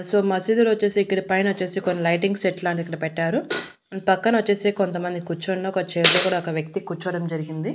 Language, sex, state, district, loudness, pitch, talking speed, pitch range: Telugu, female, Andhra Pradesh, Annamaya, -22 LUFS, 185 Hz, 195 wpm, 170-195 Hz